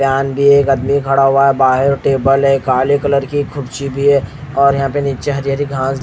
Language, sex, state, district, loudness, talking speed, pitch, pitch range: Hindi, male, Haryana, Rohtak, -14 LUFS, 260 wpm, 140 Hz, 135-140 Hz